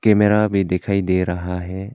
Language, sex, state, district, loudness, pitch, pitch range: Hindi, male, Arunachal Pradesh, Longding, -19 LUFS, 95 Hz, 90-105 Hz